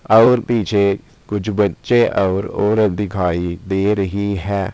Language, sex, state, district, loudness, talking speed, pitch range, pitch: Hindi, male, Uttar Pradesh, Saharanpur, -17 LUFS, 125 wpm, 95-110 Hz, 100 Hz